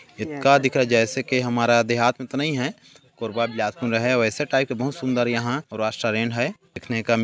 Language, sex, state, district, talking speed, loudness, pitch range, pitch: Hindi, male, Chhattisgarh, Korba, 240 wpm, -22 LUFS, 115-130 Hz, 120 Hz